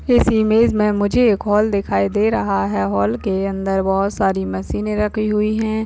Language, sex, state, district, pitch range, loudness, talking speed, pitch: Hindi, female, Uttar Pradesh, Jyotiba Phule Nagar, 190-220 Hz, -18 LUFS, 195 wpm, 210 Hz